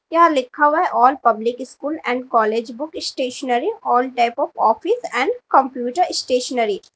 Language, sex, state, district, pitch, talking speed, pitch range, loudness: Hindi, female, Uttar Pradesh, Lalitpur, 260 Hz, 165 wpm, 245-320 Hz, -19 LUFS